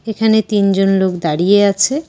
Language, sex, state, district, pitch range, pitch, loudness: Bengali, female, West Bengal, Cooch Behar, 195-220 Hz, 200 Hz, -14 LUFS